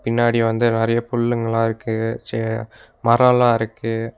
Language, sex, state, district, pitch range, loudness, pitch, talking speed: Tamil, male, Tamil Nadu, Nilgiris, 115-120 Hz, -19 LUFS, 115 Hz, 115 wpm